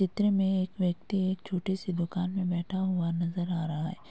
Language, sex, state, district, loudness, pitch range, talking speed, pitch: Hindi, female, Uttar Pradesh, Muzaffarnagar, -30 LUFS, 175-190 Hz, 220 wpm, 185 Hz